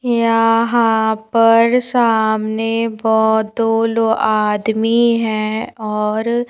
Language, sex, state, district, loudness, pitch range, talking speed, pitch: Hindi, female, Madhya Pradesh, Bhopal, -15 LUFS, 220-230 Hz, 75 wpm, 225 Hz